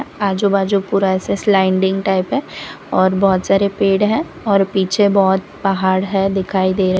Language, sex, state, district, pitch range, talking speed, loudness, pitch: Hindi, female, Gujarat, Valsad, 190-200 Hz, 170 wpm, -16 LUFS, 195 Hz